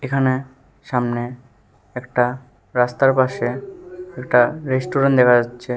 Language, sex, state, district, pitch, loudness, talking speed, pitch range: Bengali, male, Tripura, West Tripura, 125 Hz, -19 LUFS, 95 wpm, 120-135 Hz